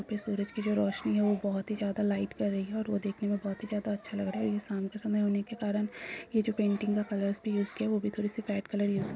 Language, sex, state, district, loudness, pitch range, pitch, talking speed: Hindi, female, Bihar, Kishanganj, -32 LUFS, 200-210 Hz, 205 Hz, 325 wpm